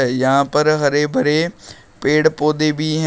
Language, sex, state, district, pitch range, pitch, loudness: Hindi, male, Uttar Pradesh, Shamli, 145-155 Hz, 150 Hz, -16 LUFS